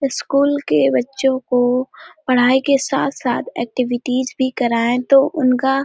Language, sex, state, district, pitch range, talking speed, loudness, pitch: Hindi, female, Uttar Pradesh, Hamirpur, 245-270 Hz, 135 wpm, -17 LUFS, 260 Hz